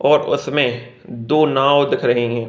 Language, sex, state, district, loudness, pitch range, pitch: Hindi, male, Bihar, East Champaran, -16 LUFS, 120-140 Hz, 120 Hz